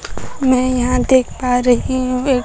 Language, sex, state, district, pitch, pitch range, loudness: Hindi, female, Bihar, Kaimur, 255 Hz, 250-260 Hz, -16 LUFS